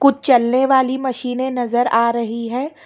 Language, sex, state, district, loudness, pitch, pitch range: Hindi, female, Karnataka, Bangalore, -17 LUFS, 250 Hz, 235-265 Hz